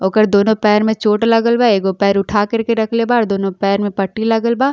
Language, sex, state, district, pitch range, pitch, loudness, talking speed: Bhojpuri, female, Uttar Pradesh, Ghazipur, 200-230 Hz, 215 Hz, -15 LUFS, 265 wpm